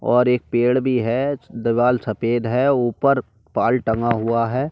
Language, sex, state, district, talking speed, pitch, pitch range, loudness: Hindi, male, Delhi, New Delhi, 165 wpm, 120 Hz, 115-130 Hz, -20 LUFS